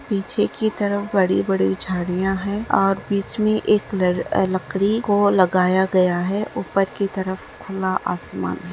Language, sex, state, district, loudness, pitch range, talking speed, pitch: Hindi, female, Chhattisgarh, Sukma, -20 LUFS, 180-200 Hz, 160 wpm, 190 Hz